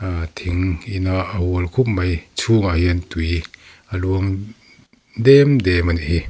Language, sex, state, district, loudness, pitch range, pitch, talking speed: Mizo, male, Mizoram, Aizawl, -19 LUFS, 85-100 Hz, 95 Hz, 170 wpm